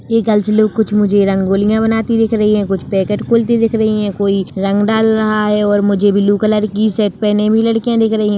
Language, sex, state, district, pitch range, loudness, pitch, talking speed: Hindi, female, Chhattisgarh, Bilaspur, 205-220 Hz, -13 LUFS, 210 Hz, 220 wpm